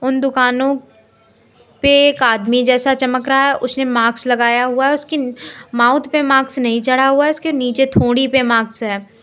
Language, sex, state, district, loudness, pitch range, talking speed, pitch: Hindi, female, Uttar Pradesh, Lalitpur, -15 LUFS, 245-270 Hz, 180 wpm, 260 Hz